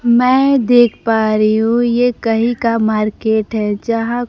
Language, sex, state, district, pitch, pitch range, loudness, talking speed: Hindi, female, Bihar, Kaimur, 230 Hz, 220-240 Hz, -14 LUFS, 155 wpm